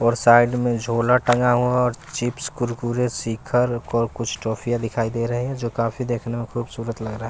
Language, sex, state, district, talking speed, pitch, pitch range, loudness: Hindi, male, Bihar, West Champaran, 215 wpm, 120 Hz, 115-125 Hz, -22 LUFS